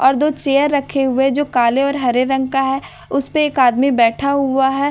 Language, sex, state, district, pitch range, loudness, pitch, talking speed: Hindi, female, Bihar, Katihar, 265-280 Hz, -16 LUFS, 270 Hz, 210 wpm